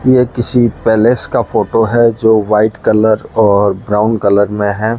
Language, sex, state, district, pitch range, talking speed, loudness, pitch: Hindi, male, Rajasthan, Bikaner, 105-115 Hz, 170 wpm, -12 LUFS, 110 Hz